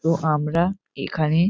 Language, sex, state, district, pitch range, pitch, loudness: Bengali, male, West Bengal, North 24 Parganas, 155-175 Hz, 165 Hz, -23 LUFS